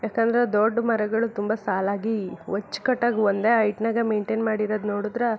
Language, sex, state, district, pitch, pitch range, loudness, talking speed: Kannada, female, Karnataka, Belgaum, 220 Hz, 210-230 Hz, -24 LUFS, 155 wpm